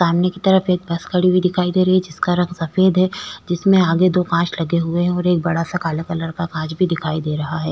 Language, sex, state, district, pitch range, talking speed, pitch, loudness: Hindi, female, Goa, North and South Goa, 165-180 Hz, 270 wpm, 175 Hz, -18 LUFS